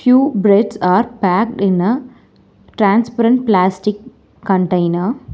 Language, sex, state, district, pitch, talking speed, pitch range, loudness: English, female, Telangana, Hyderabad, 210 Hz, 100 wpm, 190-235 Hz, -15 LUFS